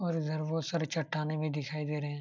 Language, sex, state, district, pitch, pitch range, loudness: Hindi, male, Jharkhand, Jamtara, 155 Hz, 150-160 Hz, -34 LUFS